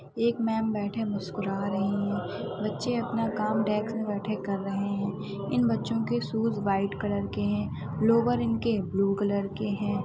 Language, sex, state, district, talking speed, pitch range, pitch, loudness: Hindi, female, Chhattisgarh, Sukma, 190 wpm, 195-220 Hz, 200 Hz, -29 LUFS